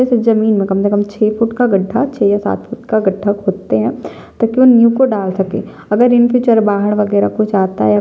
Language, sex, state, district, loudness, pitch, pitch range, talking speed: Hindi, female, Chhattisgarh, Sukma, -13 LUFS, 210 Hz, 200-235 Hz, 230 wpm